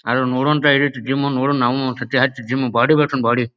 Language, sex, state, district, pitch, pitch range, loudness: Kannada, male, Karnataka, Bijapur, 130 Hz, 125-140 Hz, -17 LUFS